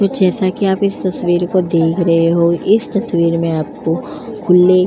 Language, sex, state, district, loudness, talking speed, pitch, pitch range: Hindi, female, Uttar Pradesh, Jyotiba Phule Nagar, -15 LUFS, 195 wpm, 180 Hz, 170-195 Hz